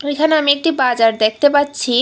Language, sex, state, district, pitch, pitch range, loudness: Bengali, female, Tripura, West Tripura, 285 Hz, 245-290 Hz, -14 LUFS